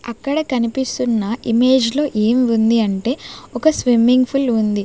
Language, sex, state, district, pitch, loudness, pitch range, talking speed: Telugu, female, Andhra Pradesh, Sri Satya Sai, 240 Hz, -17 LUFS, 230-260 Hz, 135 wpm